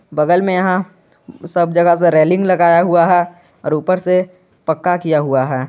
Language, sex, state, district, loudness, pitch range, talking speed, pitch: Hindi, male, Jharkhand, Garhwa, -14 LUFS, 160-185 Hz, 180 wpm, 175 Hz